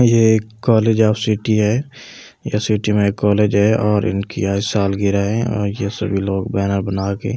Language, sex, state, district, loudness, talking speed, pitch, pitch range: Hindi, male, Delhi, New Delhi, -17 LUFS, 185 wpm, 105 Hz, 100-110 Hz